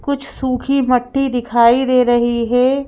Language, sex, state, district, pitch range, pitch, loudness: Hindi, female, Madhya Pradesh, Bhopal, 240-270 Hz, 250 Hz, -15 LUFS